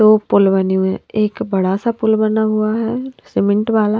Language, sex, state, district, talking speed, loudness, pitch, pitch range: Hindi, female, Bihar, Katihar, 210 wpm, -16 LUFS, 215 Hz, 200-220 Hz